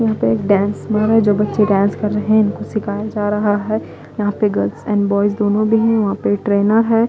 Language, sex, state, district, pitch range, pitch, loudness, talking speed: Hindi, female, Punjab, Fazilka, 205-215 Hz, 210 Hz, -16 LUFS, 255 wpm